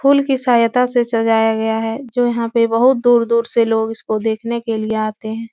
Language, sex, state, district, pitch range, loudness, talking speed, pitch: Hindi, female, Uttar Pradesh, Etah, 225-240 Hz, -16 LUFS, 230 wpm, 230 Hz